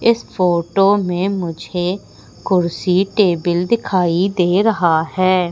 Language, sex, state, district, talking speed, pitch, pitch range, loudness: Hindi, female, Madhya Pradesh, Umaria, 110 wpm, 185 Hz, 175-195 Hz, -17 LUFS